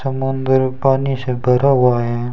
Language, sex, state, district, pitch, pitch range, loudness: Hindi, male, Rajasthan, Bikaner, 130 Hz, 125-135 Hz, -16 LUFS